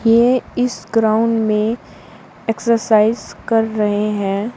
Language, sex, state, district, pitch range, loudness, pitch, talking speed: Hindi, female, Uttar Pradesh, Shamli, 210-230 Hz, -17 LUFS, 225 Hz, 105 wpm